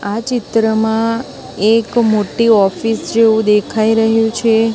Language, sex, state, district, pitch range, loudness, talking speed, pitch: Gujarati, female, Gujarat, Gandhinagar, 220-230 Hz, -14 LUFS, 115 wpm, 225 Hz